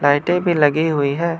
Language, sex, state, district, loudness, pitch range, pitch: Hindi, male, Arunachal Pradesh, Lower Dibang Valley, -17 LUFS, 145-170 Hz, 155 Hz